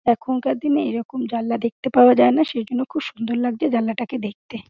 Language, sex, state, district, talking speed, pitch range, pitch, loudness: Bengali, female, West Bengal, Dakshin Dinajpur, 165 wpm, 235-260 Hz, 245 Hz, -20 LUFS